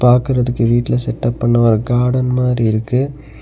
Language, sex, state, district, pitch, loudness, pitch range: Tamil, male, Tamil Nadu, Nilgiris, 120 Hz, -15 LUFS, 120-125 Hz